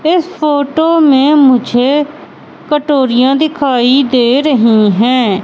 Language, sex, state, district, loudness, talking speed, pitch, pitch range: Hindi, female, Madhya Pradesh, Katni, -10 LUFS, 100 wpm, 275 Hz, 250-300 Hz